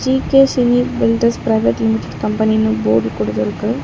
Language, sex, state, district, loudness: Tamil, female, Tamil Nadu, Chennai, -15 LUFS